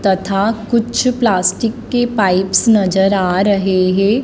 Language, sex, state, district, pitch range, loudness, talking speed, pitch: Hindi, female, Madhya Pradesh, Dhar, 190-235 Hz, -14 LUFS, 125 wpm, 200 Hz